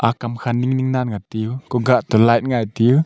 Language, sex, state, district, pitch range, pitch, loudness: Wancho, male, Arunachal Pradesh, Longding, 115-125 Hz, 120 Hz, -18 LUFS